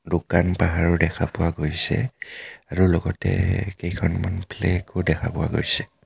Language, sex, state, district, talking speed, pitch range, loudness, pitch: Assamese, male, Assam, Kamrup Metropolitan, 140 wpm, 85-100 Hz, -23 LUFS, 90 Hz